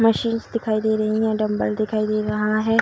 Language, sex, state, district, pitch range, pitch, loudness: Hindi, female, Bihar, Kishanganj, 215-220 Hz, 215 Hz, -22 LUFS